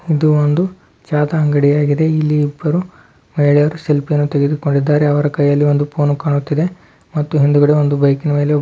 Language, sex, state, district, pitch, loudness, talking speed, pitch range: Kannada, male, Karnataka, Dharwad, 145 Hz, -15 LUFS, 125 wpm, 145-155 Hz